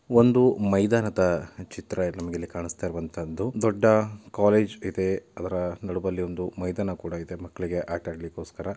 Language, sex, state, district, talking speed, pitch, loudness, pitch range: Kannada, male, Karnataka, Dakshina Kannada, 125 wpm, 90 Hz, -26 LUFS, 85-105 Hz